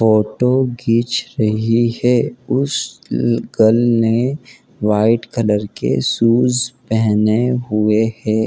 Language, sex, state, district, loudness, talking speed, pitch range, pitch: Hindi, male, Bihar, Jamui, -16 LUFS, 100 wpm, 110-125 Hz, 115 Hz